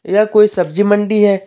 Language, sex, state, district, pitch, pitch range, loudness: Hindi, male, Jharkhand, Deoghar, 205 Hz, 195-210 Hz, -13 LUFS